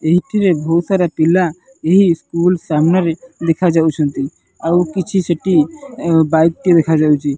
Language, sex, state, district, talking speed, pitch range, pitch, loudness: Odia, male, Odisha, Nuapada, 120 wpm, 160-185 Hz, 170 Hz, -15 LUFS